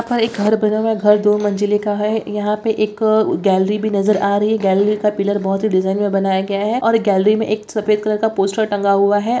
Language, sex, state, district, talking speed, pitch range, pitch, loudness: Hindi, female, Bihar, Jamui, 270 wpm, 200-215 Hz, 210 Hz, -16 LUFS